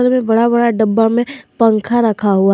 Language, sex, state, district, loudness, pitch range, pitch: Hindi, male, Jharkhand, Garhwa, -14 LUFS, 220-240 Hz, 230 Hz